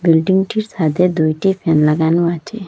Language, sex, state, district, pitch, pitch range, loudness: Bengali, female, Assam, Hailakandi, 170 Hz, 160-190 Hz, -15 LUFS